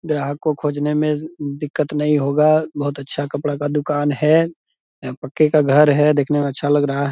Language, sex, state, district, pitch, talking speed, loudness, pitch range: Hindi, male, Bihar, Purnia, 145 Hz, 200 wpm, -18 LUFS, 145-150 Hz